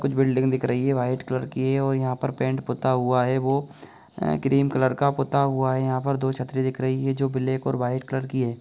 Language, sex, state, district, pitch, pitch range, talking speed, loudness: Hindi, male, Bihar, Begusarai, 130 Hz, 130-135 Hz, 265 wpm, -24 LUFS